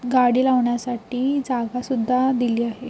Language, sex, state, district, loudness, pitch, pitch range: Marathi, female, Maharashtra, Pune, -21 LUFS, 250 Hz, 240-255 Hz